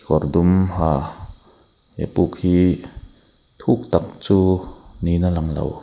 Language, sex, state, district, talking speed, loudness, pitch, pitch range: Mizo, male, Mizoram, Aizawl, 135 wpm, -20 LUFS, 85 Hz, 80-90 Hz